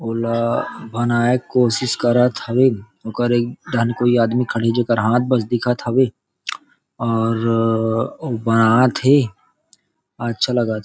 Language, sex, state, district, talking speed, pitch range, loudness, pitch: Chhattisgarhi, male, Chhattisgarh, Rajnandgaon, 125 wpm, 115-125 Hz, -18 LUFS, 120 Hz